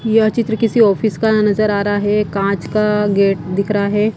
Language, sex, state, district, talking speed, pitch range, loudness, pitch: Hindi, female, Himachal Pradesh, Shimla, 215 wpm, 200-220 Hz, -15 LUFS, 210 Hz